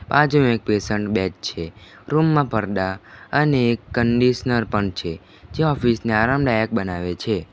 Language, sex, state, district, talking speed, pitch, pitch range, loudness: Gujarati, male, Gujarat, Valsad, 145 wpm, 110 Hz, 100-125 Hz, -20 LUFS